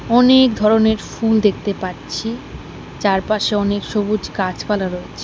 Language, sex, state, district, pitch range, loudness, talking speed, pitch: Bengali, female, West Bengal, Alipurduar, 195-220 Hz, -17 LUFS, 115 wpm, 210 Hz